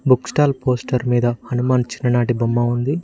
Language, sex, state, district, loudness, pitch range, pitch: Telugu, male, Telangana, Mahabubabad, -19 LUFS, 120-130 Hz, 125 Hz